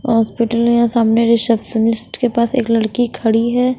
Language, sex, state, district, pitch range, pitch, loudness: Hindi, female, Haryana, Charkhi Dadri, 225-240 Hz, 235 Hz, -15 LUFS